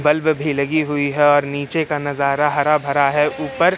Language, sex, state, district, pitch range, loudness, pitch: Hindi, male, Madhya Pradesh, Katni, 145-150 Hz, -18 LUFS, 145 Hz